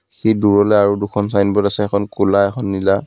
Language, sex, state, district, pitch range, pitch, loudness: Assamese, male, Assam, Kamrup Metropolitan, 100-105 Hz, 100 Hz, -16 LUFS